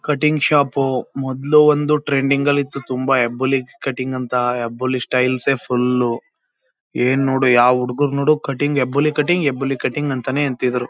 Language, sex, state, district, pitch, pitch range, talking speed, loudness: Kannada, male, Karnataka, Chamarajanagar, 135 Hz, 125-145 Hz, 145 wpm, -18 LUFS